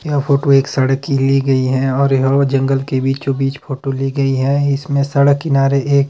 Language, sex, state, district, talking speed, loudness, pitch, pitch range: Hindi, male, Himachal Pradesh, Shimla, 225 wpm, -15 LUFS, 135 Hz, 135-140 Hz